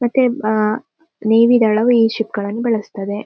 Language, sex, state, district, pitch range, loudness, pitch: Kannada, female, Karnataka, Dakshina Kannada, 215-245 Hz, -16 LUFS, 225 Hz